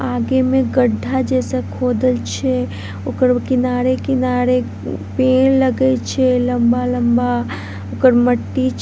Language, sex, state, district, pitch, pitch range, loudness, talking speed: Maithili, female, Bihar, Vaishali, 250 Hz, 240-260 Hz, -17 LUFS, 110 wpm